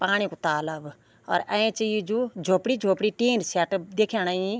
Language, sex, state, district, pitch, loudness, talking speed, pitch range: Garhwali, female, Uttarakhand, Tehri Garhwal, 205 Hz, -25 LUFS, 145 wpm, 180-220 Hz